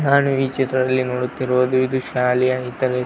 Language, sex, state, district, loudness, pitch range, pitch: Kannada, male, Karnataka, Belgaum, -19 LUFS, 125-130 Hz, 130 Hz